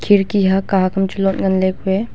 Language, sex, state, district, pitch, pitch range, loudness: Wancho, female, Arunachal Pradesh, Longding, 195 Hz, 190-195 Hz, -16 LUFS